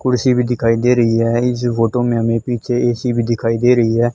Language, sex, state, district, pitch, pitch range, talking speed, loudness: Hindi, female, Haryana, Charkhi Dadri, 120 Hz, 115-125 Hz, 245 wpm, -16 LUFS